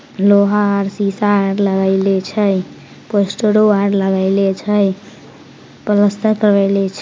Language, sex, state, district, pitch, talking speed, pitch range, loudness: Magahi, female, Bihar, Samastipur, 200 Hz, 110 wpm, 195-205 Hz, -15 LUFS